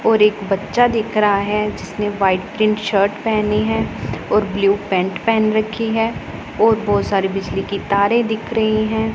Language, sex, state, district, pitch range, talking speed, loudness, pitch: Hindi, female, Punjab, Pathankot, 200-220 Hz, 175 wpm, -18 LUFS, 210 Hz